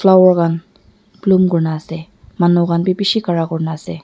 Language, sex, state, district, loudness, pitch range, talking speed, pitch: Nagamese, female, Nagaland, Dimapur, -15 LUFS, 165-185 Hz, 150 wpm, 175 Hz